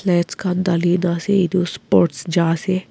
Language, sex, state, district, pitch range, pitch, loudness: Nagamese, female, Nagaland, Kohima, 170-185 Hz, 175 Hz, -19 LUFS